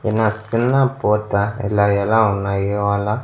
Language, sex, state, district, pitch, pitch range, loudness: Telugu, male, Andhra Pradesh, Annamaya, 105 Hz, 100-110 Hz, -18 LUFS